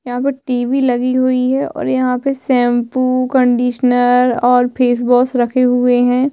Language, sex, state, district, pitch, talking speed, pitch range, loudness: Hindi, female, Chhattisgarh, Sukma, 250 Hz, 160 wpm, 245-255 Hz, -14 LUFS